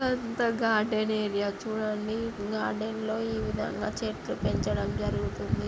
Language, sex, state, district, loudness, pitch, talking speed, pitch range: Telugu, female, Andhra Pradesh, Guntur, -30 LUFS, 220 Hz, 115 wpm, 215-225 Hz